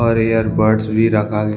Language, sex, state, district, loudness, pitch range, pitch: Hindi, male, Jharkhand, Deoghar, -16 LUFS, 105-115 Hz, 110 Hz